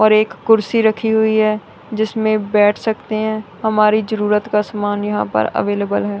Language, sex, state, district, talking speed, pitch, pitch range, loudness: Hindi, female, Punjab, Kapurthala, 175 wpm, 215 Hz, 205-220 Hz, -17 LUFS